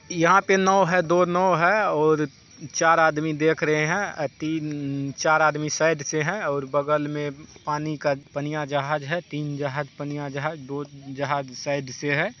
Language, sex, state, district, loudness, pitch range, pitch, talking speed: Hindi, male, Bihar, Saharsa, -23 LUFS, 145-160 Hz, 150 Hz, 185 wpm